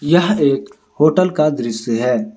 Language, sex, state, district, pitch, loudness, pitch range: Hindi, male, Jharkhand, Ranchi, 150 Hz, -16 LUFS, 125-180 Hz